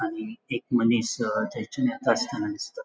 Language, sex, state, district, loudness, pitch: Konkani, male, Goa, North and South Goa, -27 LUFS, 130 Hz